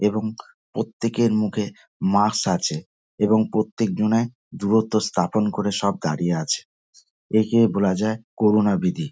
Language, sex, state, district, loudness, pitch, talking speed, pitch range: Bengali, male, West Bengal, North 24 Parganas, -22 LUFS, 110 Hz, 125 wpm, 100-110 Hz